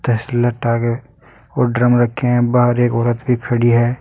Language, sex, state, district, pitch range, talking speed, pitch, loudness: Hindi, male, Uttar Pradesh, Saharanpur, 120-125 Hz, 150 wpm, 120 Hz, -16 LUFS